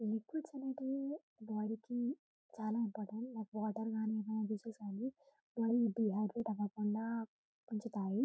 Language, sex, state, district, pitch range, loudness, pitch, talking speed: Telugu, female, Telangana, Karimnagar, 215-245 Hz, -40 LUFS, 225 Hz, 85 wpm